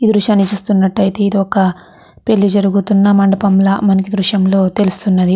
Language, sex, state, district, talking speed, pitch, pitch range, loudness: Telugu, female, Andhra Pradesh, Guntur, 155 wpm, 200 Hz, 195-205 Hz, -13 LUFS